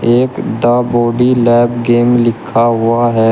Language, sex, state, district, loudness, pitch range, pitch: Hindi, male, Uttar Pradesh, Shamli, -12 LUFS, 115-120 Hz, 120 Hz